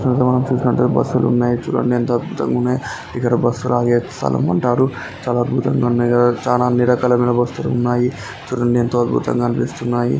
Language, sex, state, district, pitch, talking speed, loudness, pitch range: Telugu, male, Telangana, Karimnagar, 120 Hz, 170 wpm, -17 LUFS, 120-125 Hz